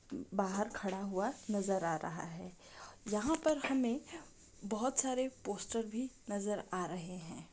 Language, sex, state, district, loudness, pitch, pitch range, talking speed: Hindi, female, Uttarakhand, Uttarkashi, -38 LUFS, 205 Hz, 185-255 Hz, 145 wpm